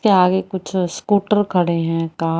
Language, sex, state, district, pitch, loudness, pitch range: Hindi, female, Haryana, Rohtak, 185 Hz, -18 LUFS, 165-195 Hz